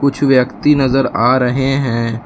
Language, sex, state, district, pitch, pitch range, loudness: Hindi, male, Jharkhand, Palamu, 135 Hz, 125-135 Hz, -14 LUFS